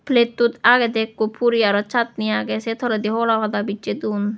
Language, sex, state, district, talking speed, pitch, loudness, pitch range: Chakma, female, Tripura, West Tripura, 190 wpm, 225 Hz, -20 LUFS, 210-235 Hz